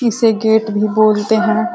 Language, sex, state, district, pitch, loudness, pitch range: Hindi, female, Uttar Pradesh, Ghazipur, 220 Hz, -14 LUFS, 215-225 Hz